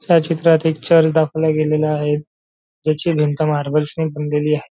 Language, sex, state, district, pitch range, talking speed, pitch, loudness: Marathi, male, Maharashtra, Nagpur, 150-160 Hz, 165 wpm, 155 Hz, -17 LUFS